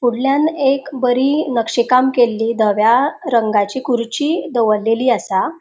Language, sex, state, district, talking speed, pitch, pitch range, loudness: Konkani, female, Goa, North and South Goa, 120 wpm, 245 Hz, 225-275 Hz, -16 LUFS